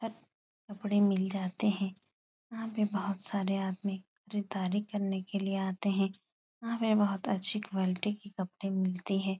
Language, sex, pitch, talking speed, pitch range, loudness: Hindi, female, 195 Hz, 160 wpm, 190-205 Hz, -32 LUFS